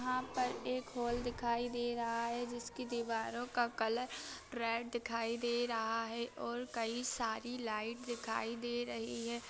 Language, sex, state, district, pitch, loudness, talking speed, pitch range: Hindi, female, Bihar, Bhagalpur, 235 Hz, -39 LUFS, 150 wpm, 230-240 Hz